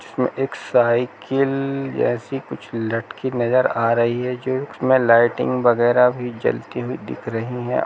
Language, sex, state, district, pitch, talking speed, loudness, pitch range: Hindi, male, Bihar, Gaya, 125 Hz, 155 wpm, -20 LUFS, 120-130 Hz